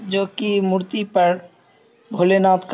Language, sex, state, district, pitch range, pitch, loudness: Hindi, male, Bihar, Samastipur, 180-205 Hz, 190 Hz, -19 LUFS